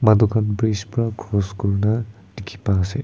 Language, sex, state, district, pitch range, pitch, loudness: Nagamese, male, Nagaland, Kohima, 100-110 Hz, 105 Hz, -21 LUFS